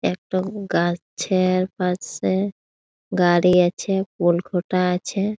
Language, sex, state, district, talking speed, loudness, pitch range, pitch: Bengali, female, West Bengal, Jalpaiguri, 100 wpm, -21 LUFS, 180-195 Hz, 185 Hz